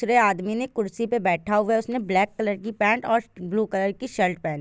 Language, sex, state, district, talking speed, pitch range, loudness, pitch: Hindi, female, Bihar, Jahanabad, 245 wpm, 195-230 Hz, -24 LUFS, 210 Hz